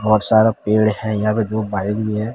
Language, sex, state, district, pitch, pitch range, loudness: Hindi, male, Odisha, Sambalpur, 110 Hz, 105-110 Hz, -18 LUFS